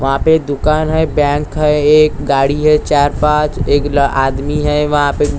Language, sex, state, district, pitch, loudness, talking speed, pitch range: Hindi, male, Maharashtra, Gondia, 150 Hz, -13 LUFS, 190 wpm, 145-150 Hz